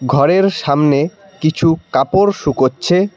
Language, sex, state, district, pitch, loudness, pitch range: Bengali, male, West Bengal, Cooch Behar, 160 Hz, -14 LUFS, 140-190 Hz